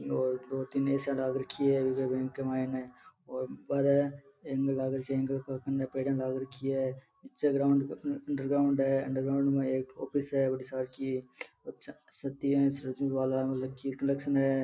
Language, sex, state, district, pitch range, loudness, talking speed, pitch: Marwari, male, Rajasthan, Nagaur, 130-140 Hz, -32 LUFS, 130 wpm, 135 Hz